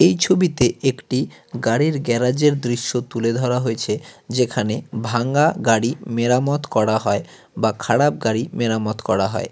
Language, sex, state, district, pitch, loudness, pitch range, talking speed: Bengali, male, West Bengal, Cooch Behar, 120 Hz, -20 LUFS, 110-135 Hz, 130 wpm